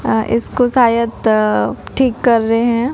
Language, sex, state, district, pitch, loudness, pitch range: Hindi, female, Odisha, Nuapada, 230 Hz, -15 LUFS, 215-245 Hz